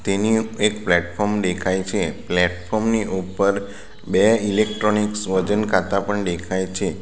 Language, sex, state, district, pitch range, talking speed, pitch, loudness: Gujarati, male, Gujarat, Valsad, 95-105 Hz, 135 wpm, 100 Hz, -21 LUFS